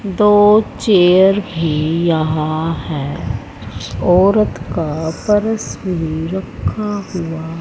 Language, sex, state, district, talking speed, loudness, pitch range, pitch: Hindi, female, Haryana, Rohtak, 85 wpm, -16 LUFS, 155-195 Hz, 165 Hz